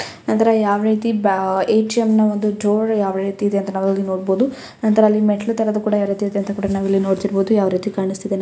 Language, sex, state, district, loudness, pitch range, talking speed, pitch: Kannada, female, Karnataka, Chamarajanagar, -18 LUFS, 195-215 Hz, 200 wpm, 205 Hz